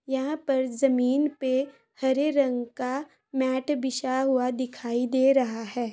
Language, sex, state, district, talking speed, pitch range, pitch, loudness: Hindi, female, Bihar, Saran, 140 wpm, 250-275 Hz, 260 Hz, -26 LUFS